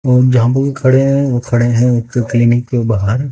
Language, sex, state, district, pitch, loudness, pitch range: Hindi, male, Haryana, Jhajjar, 125 Hz, -13 LUFS, 120-130 Hz